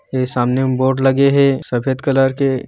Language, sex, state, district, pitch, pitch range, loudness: Hindi, male, Chhattisgarh, Bilaspur, 135 Hz, 130-135 Hz, -16 LUFS